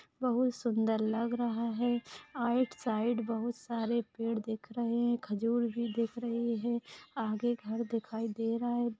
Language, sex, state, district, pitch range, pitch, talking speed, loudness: Hindi, female, Maharashtra, Sindhudurg, 225-240 Hz, 235 Hz, 155 wpm, -34 LUFS